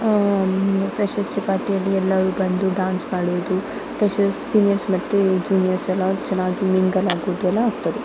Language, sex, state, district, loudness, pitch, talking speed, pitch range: Kannada, female, Karnataka, Dakshina Kannada, -20 LUFS, 190 Hz, 140 wpm, 185-200 Hz